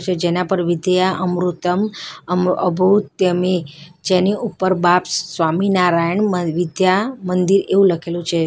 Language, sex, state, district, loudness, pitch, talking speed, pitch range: Gujarati, female, Gujarat, Valsad, -17 LUFS, 180 Hz, 120 wpm, 175-190 Hz